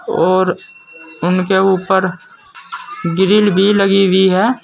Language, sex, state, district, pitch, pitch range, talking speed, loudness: Hindi, male, Uttar Pradesh, Saharanpur, 190 Hz, 185-210 Hz, 105 wpm, -13 LUFS